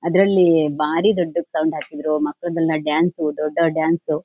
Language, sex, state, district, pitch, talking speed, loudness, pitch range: Kannada, female, Karnataka, Shimoga, 160 Hz, 155 wpm, -19 LUFS, 155-170 Hz